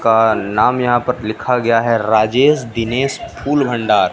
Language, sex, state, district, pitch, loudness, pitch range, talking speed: Hindi, male, Bihar, West Champaran, 115 Hz, -15 LUFS, 110-125 Hz, 160 wpm